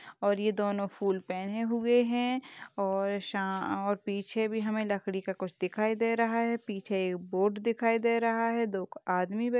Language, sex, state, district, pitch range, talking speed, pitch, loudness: Hindi, female, Uttar Pradesh, Etah, 195-230 Hz, 195 wpm, 205 Hz, -31 LUFS